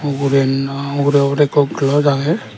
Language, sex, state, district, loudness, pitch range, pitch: Chakma, male, Tripura, Dhalai, -15 LUFS, 140-145 Hz, 140 Hz